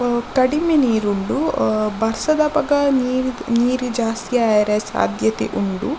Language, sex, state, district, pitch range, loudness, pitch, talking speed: Tulu, female, Karnataka, Dakshina Kannada, 215-275 Hz, -19 LUFS, 240 Hz, 110 wpm